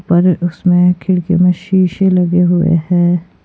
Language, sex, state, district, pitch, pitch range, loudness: Hindi, female, Himachal Pradesh, Shimla, 180 Hz, 175-180 Hz, -13 LUFS